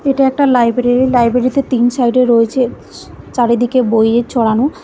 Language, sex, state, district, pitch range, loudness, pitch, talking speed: Bengali, female, Karnataka, Bangalore, 240-260 Hz, -13 LUFS, 245 Hz, 125 wpm